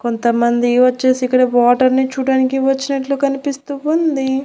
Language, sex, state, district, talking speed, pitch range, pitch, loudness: Telugu, female, Andhra Pradesh, Annamaya, 120 wpm, 250-275 Hz, 265 Hz, -15 LUFS